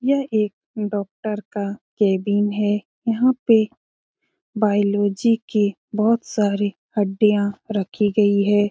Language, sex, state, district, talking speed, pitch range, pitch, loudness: Hindi, female, Bihar, Lakhisarai, 115 wpm, 205-220 Hz, 210 Hz, -21 LUFS